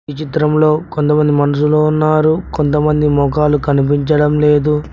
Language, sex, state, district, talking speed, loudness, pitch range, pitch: Telugu, male, Telangana, Mahabubabad, 110 wpm, -13 LUFS, 150-155 Hz, 150 Hz